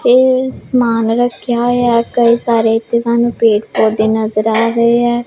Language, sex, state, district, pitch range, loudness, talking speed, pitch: Punjabi, female, Punjab, Pathankot, 225-240 Hz, -13 LUFS, 160 wpm, 235 Hz